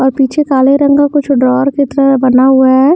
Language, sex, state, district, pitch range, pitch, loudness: Hindi, female, Himachal Pradesh, Shimla, 265-285 Hz, 270 Hz, -9 LUFS